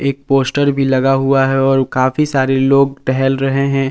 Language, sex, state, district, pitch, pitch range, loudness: Hindi, male, Jharkhand, Palamu, 135 Hz, 135-140 Hz, -14 LUFS